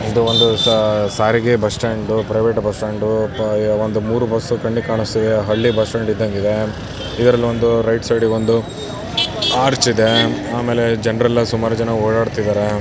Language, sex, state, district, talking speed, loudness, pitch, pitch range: Kannada, male, Karnataka, Chamarajanagar, 110 wpm, -17 LUFS, 115 Hz, 110-115 Hz